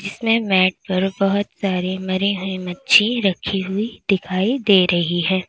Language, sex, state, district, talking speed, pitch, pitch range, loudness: Hindi, female, Uttar Pradesh, Lalitpur, 155 wpm, 190 Hz, 185-200 Hz, -19 LUFS